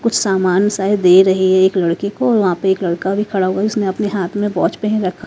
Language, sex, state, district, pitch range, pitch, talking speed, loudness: Hindi, female, Haryana, Rohtak, 185-205 Hz, 195 Hz, 285 wpm, -15 LUFS